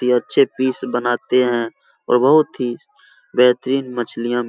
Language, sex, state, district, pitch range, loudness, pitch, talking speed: Hindi, male, Uttar Pradesh, Etah, 120-130 Hz, -18 LUFS, 125 Hz, 145 wpm